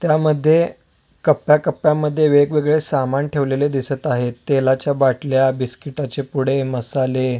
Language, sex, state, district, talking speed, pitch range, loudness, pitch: Marathi, male, Maharashtra, Solapur, 115 wpm, 130-150 Hz, -18 LUFS, 140 Hz